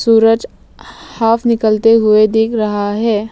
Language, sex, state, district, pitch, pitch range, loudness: Hindi, female, Arunachal Pradesh, Lower Dibang Valley, 225 Hz, 215-230 Hz, -13 LUFS